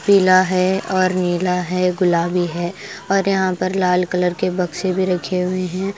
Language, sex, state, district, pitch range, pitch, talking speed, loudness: Hindi, female, Bihar, West Champaran, 180-190 Hz, 185 Hz, 180 wpm, -18 LUFS